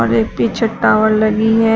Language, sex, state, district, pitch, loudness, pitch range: Hindi, female, Uttar Pradesh, Shamli, 220 Hz, -14 LUFS, 215-225 Hz